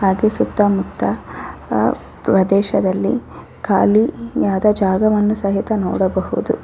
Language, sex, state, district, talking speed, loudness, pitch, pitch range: Kannada, female, Karnataka, Bellary, 80 wpm, -17 LUFS, 200 Hz, 195-215 Hz